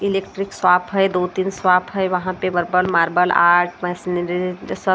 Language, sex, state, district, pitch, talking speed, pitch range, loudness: Hindi, female, Maharashtra, Gondia, 180 Hz, 155 wpm, 180-190 Hz, -18 LUFS